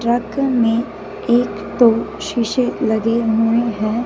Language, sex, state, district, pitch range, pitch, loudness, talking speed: Hindi, female, Punjab, Fazilka, 225-240 Hz, 230 Hz, -17 LUFS, 120 wpm